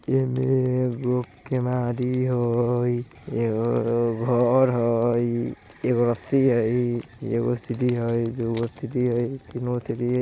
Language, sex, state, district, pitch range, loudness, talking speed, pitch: Bajjika, male, Bihar, Vaishali, 120-125 Hz, -24 LUFS, 115 wpm, 120 Hz